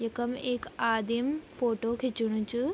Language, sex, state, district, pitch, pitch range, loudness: Garhwali, female, Uttarakhand, Tehri Garhwal, 235 Hz, 230-250 Hz, -31 LUFS